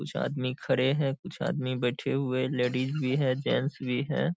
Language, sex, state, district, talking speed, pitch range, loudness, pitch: Hindi, male, Bihar, Saharsa, 205 wpm, 130-145 Hz, -29 LUFS, 135 Hz